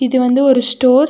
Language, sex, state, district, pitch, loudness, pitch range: Tamil, female, Tamil Nadu, Nilgiris, 255 Hz, -12 LUFS, 250-265 Hz